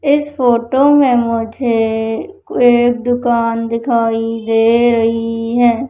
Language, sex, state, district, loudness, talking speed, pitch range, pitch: Hindi, female, Madhya Pradesh, Umaria, -14 LUFS, 100 wpm, 230-245 Hz, 235 Hz